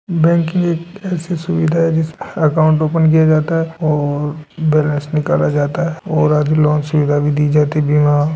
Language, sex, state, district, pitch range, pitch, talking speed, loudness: Hindi, male, Rajasthan, Nagaur, 150-165 Hz, 155 Hz, 185 wpm, -15 LUFS